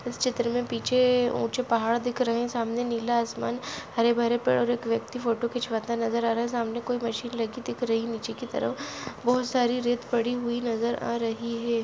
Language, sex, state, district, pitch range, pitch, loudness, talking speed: Hindi, female, Chhattisgarh, Sarguja, 230-245 Hz, 235 Hz, -27 LUFS, 220 wpm